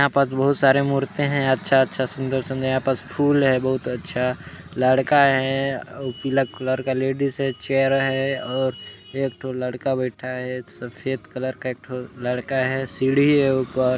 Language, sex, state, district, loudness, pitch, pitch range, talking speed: Hindi, male, Chhattisgarh, Balrampur, -22 LUFS, 130 Hz, 130-135 Hz, 170 wpm